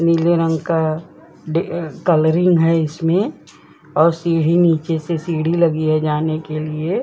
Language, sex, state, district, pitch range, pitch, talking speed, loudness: Hindi, female, Bihar, Vaishali, 155-170 Hz, 165 Hz, 145 wpm, -17 LUFS